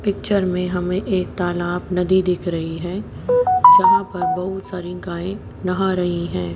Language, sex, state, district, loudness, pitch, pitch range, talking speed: Hindi, male, Haryana, Jhajjar, -19 LUFS, 185 Hz, 175-195 Hz, 155 wpm